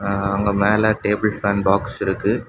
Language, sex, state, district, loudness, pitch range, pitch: Tamil, male, Tamil Nadu, Kanyakumari, -19 LUFS, 100-105 Hz, 100 Hz